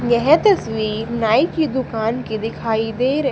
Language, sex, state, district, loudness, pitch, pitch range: Hindi, female, Haryana, Charkhi Dadri, -18 LUFS, 235 Hz, 220-275 Hz